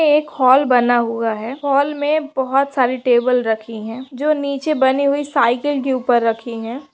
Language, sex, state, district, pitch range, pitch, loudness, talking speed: Hindi, female, West Bengal, Paschim Medinipur, 240-280 Hz, 260 Hz, -17 LUFS, 175 wpm